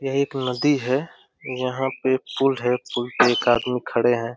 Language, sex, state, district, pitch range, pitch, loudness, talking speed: Hindi, male, Uttar Pradesh, Deoria, 120-135 Hz, 130 Hz, -22 LUFS, 190 wpm